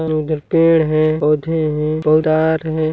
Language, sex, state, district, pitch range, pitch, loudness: Hindi, male, Chhattisgarh, Sarguja, 155-160 Hz, 155 Hz, -16 LUFS